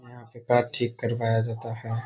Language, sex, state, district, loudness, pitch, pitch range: Hindi, male, Bihar, Saharsa, -26 LUFS, 120 Hz, 115-120 Hz